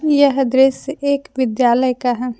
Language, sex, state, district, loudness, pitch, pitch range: Hindi, female, Jharkhand, Deoghar, -16 LUFS, 260 Hz, 250-280 Hz